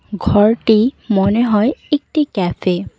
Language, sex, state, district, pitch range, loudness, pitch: Bengali, female, West Bengal, Cooch Behar, 200-240 Hz, -15 LUFS, 215 Hz